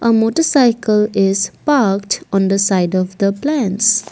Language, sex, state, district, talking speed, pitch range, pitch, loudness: English, female, Assam, Kamrup Metropolitan, 145 wpm, 195-230 Hz, 210 Hz, -15 LUFS